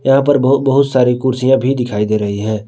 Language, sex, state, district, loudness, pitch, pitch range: Hindi, male, Jharkhand, Palamu, -14 LUFS, 130 Hz, 110-135 Hz